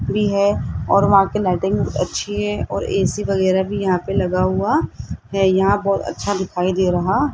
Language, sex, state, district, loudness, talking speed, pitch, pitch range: Hindi, female, Rajasthan, Jaipur, -19 LUFS, 190 wpm, 195 Hz, 185-200 Hz